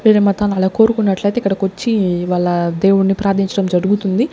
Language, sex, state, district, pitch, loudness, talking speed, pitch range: Telugu, female, Andhra Pradesh, Sri Satya Sai, 195 Hz, -15 LUFS, 125 wpm, 190-205 Hz